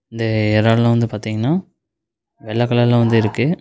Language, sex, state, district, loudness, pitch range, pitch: Tamil, male, Tamil Nadu, Namakkal, -17 LUFS, 110-120 Hz, 115 Hz